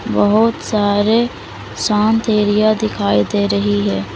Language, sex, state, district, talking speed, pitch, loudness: Hindi, female, Uttar Pradesh, Lalitpur, 115 wpm, 210 Hz, -15 LUFS